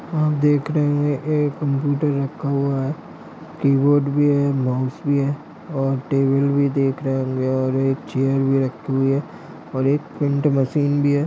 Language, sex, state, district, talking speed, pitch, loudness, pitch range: Hindi, male, Bihar, Gopalganj, 180 wpm, 140 Hz, -20 LUFS, 135-145 Hz